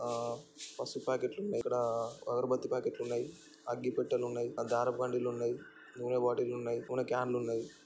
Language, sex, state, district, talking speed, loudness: Telugu, male, Andhra Pradesh, Chittoor, 120 wpm, -36 LUFS